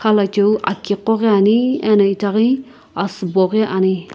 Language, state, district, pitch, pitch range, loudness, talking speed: Sumi, Nagaland, Kohima, 205 Hz, 195-220 Hz, -16 LUFS, 175 wpm